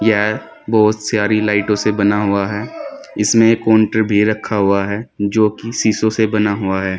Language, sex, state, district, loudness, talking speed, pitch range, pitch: Hindi, male, Uttar Pradesh, Saharanpur, -16 LUFS, 190 wpm, 105-110 Hz, 105 Hz